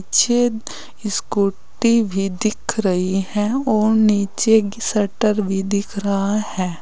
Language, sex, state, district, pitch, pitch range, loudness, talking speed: Hindi, female, Uttar Pradesh, Saharanpur, 210 Hz, 195-220 Hz, -19 LUFS, 125 wpm